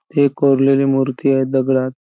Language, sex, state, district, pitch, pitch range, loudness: Marathi, male, Maharashtra, Chandrapur, 135 Hz, 130-135 Hz, -16 LUFS